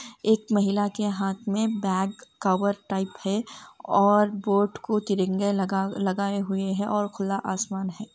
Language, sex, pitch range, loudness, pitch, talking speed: Hindi, female, 195-210 Hz, -26 LUFS, 200 Hz, 145 wpm